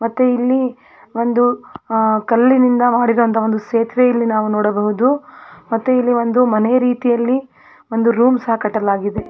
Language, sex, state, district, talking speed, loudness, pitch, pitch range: Kannada, female, Karnataka, Belgaum, 130 wpm, -16 LUFS, 235 Hz, 220-250 Hz